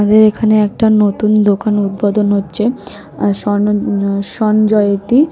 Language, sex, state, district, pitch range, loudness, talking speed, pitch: Bengali, female, West Bengal, North 24 Parganas, 205-215 Hz, -13 LUFS, 125 wpm, 210 Hz